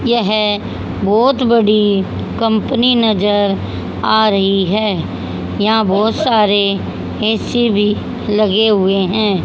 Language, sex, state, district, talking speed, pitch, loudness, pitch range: Hindi, female, Haryana, Charkhi Dadri, 100 wpm, 210 Hz, -14 LUFS, 195-220 Hz